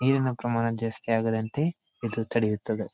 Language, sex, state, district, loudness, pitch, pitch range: Kannada, male, Karnataka, Dharwad, -28 LUFS, 115 Hz, 110-125 Hz